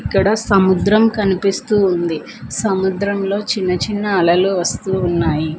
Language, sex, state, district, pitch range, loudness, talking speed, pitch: Telugu, female, Andhra Pradesh, Manyam, 180-205 Hz, -16 LUFS, 105 wpm, 195 Hz